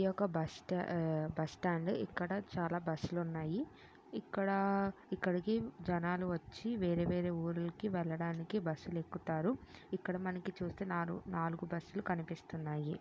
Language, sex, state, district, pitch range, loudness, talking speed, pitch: Telugu, female, Andhra Pradesh, Srikakulam, 165-190 Hz, -39 LUFS, 135 wpm, 175 Hz